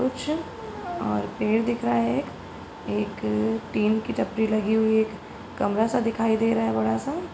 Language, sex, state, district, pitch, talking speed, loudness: Hindi, female, Uttar Pradesh, Hamirpur, 215 Hz, 190 wpm, -25 LUFS